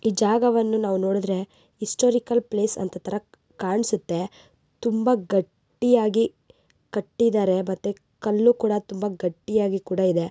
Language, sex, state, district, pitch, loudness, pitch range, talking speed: Kannada, female, Karnataka, Bijapur, 205 Hz, -24 LUFS, 190-225 Hz, 105 wpm